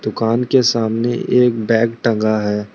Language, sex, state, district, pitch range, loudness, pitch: Hindi, male, Arunachal Pradesh, Lower Dibang Valley, 110-120 Hz, -16 LUFS, 115 Hz